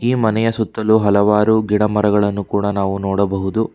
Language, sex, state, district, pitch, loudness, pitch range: Kannada, male, Karnataka, Bangalore, 105 Hz, -16 LUFS, 100-110 Hz